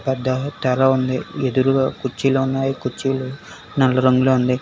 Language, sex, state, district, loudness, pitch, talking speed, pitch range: Telugu, male, Telangana, Hyderabad, -19 LUFS, 130 Hz, 130 wpm, 130-135 Hz